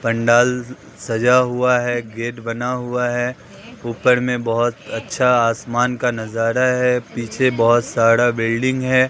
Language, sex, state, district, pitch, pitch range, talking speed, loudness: Hindi, male, Bihar, Katihar, 120 Hz, 115-125 Hz, 140 wpm, -18 LUFS